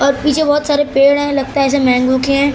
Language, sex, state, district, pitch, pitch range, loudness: Hindi, male, Maharashtra, Mumbai Suburban, 280 Hz, 275-290 Hz, -13 LUFS